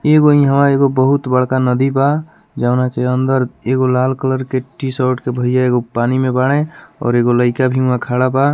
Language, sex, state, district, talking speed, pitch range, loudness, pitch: Bhojpuri, male, Bihar, Muzaffarpur, 195 wpm, 125-140 Hz, -15 LUFS, 130 Hz